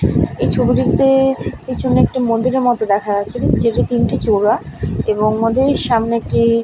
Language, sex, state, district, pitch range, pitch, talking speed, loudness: Bengali, female, West Bengal, Paschim Medinipur, 215-250 Hz, 230 Hz, 135 wpm, -16 LUFS